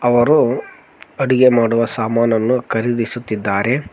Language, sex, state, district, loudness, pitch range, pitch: Kannada, male, Karnataka, Koppal, -16 LUFS, 110-125 Hz, 115 Hz